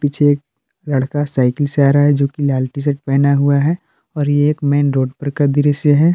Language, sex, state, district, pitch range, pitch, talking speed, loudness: Hindi, male, Jharkhand, Palamu, 140-145 Hz, 145 Hz, 245 wpm, -16 LUFS